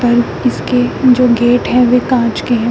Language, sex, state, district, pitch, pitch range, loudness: Hindi, female, Uttar Pradesh, Shamli, 245 Hz, 240-250 Hz, -12 LUFS